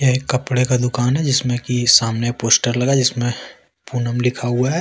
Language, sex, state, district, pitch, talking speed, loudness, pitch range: Hindi, male, Jharkhand, Deoghar, 125 Hz, 185 wpm, -17 LUFS, 120-130 Hz